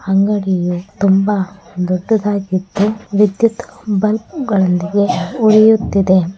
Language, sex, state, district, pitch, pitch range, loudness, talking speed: Kannada, female, Karnataka, Bellary, 200 Hz, 185-215 Hz, -15 LUFS, 65 wpm